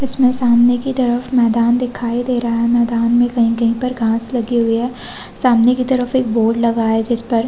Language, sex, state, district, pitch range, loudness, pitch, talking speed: Hindi, female, Chhattisgarh, Korba, 230-250 Hz, -15 LUFS, 240 Hz, 215 wpm